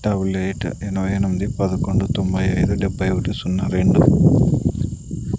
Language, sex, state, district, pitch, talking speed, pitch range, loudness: Telugu, male, Andhra Pradesh, Sri Satya Sai, 95 Hz, 120 wpm, 95-100 Hz, -19 LUFS